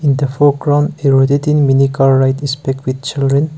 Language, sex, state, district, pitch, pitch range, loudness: English, male, Nagaland, Kohima, 140 Hz, 135-145 Hz, -13 LUFS